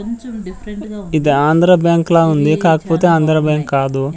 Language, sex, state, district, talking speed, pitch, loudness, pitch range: Telugu, male, Andhra Pradesh, Sri Satya Sai, 115 wpm, 165 Hz, -13 LUFS, 150-185 Hz